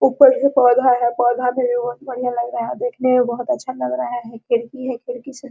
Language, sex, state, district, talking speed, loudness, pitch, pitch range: Hindi, female, Bihar, Araria, 260 wpm, -18 LUFS, 250 Hz, 240-260 Hz